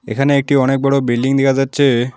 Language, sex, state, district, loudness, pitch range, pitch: Bengali, male, West Bengal, Alipurduar, -15 LUFS, 130-140 Hz, 135 Hz